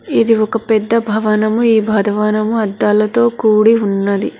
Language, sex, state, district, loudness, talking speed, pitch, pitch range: Telugu, female, Telangana, Hyderabad, -14 LUFS, 125 wpm, 215 Hz, 210-225 Hz